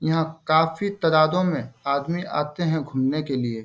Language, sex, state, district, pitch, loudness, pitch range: Hindi, male, Bihar, Bhagalpur, 155 Hz, -23 LUFS, 140-165 Hz